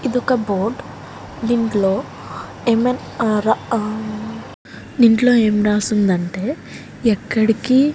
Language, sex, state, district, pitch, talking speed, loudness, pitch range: Telugu, female, Andhra Pradesh, Srikakulam, 225 Hz, 85 wpm, -18 LUFS, 210-245 Hz